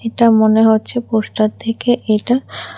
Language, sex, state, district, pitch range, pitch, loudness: Bengali, female, Tripura, West Tripura, 220-240 Hz, 225 Hz, -15 LUFS